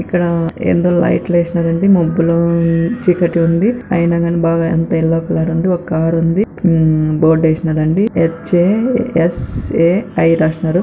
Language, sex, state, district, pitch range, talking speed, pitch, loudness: Telugu, female, Andhra Pradesh, Anantapur, 165-175 Hz, 115 wpm, 170 Hz, -14 LUFS